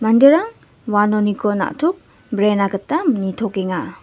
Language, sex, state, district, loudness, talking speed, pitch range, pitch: Garo, female, Meghalaya, West Garo Hills, -18 LUFS, 90 wpm, 200-280 Hz, 210 Hz